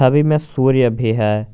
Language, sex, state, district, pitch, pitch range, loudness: Hindi, male, Jharkhand, Garhwa, 130 Hz, 110-145 Hz, -16 LUFS